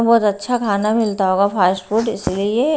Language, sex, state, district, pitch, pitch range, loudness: Hindi, female, Haryana, Rohtak, 210 Hz, 200-230 Hz, -17 LUFS